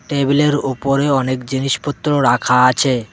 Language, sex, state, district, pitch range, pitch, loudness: Bengali, male, West Bengal, Cooch Behar, 130-145 Hz, 135 Hz, -16 LUFS